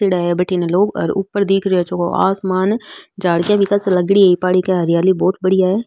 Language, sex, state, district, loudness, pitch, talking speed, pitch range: Marwari, female, Rajasthan, Nagaur, -16 LUFS, 185 Hz, 205 wpm, 180-195 Hz